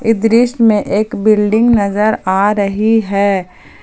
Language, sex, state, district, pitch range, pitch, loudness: Hindi, female, Jharkhand, Palamu, 200-225 Hz, 210 Hz, -13 LUFS